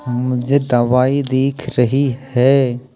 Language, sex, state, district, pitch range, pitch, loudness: Hindi, male, Uttar Pradesh, Jalaun, 125-135 Hz, 130 Hz, -16 LUFS